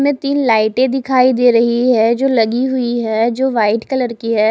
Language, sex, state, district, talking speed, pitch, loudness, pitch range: Hindi, female, Odisha, Khordha, 215 wpm, 245 Hz, -14 LUFS, 230-260 Hz